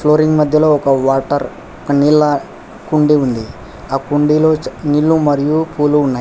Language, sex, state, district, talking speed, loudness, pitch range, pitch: Telugu, male, Telangana, Hyderabad, 135 wpm, -14 LUFS, 140-150 Hz, 150 Hz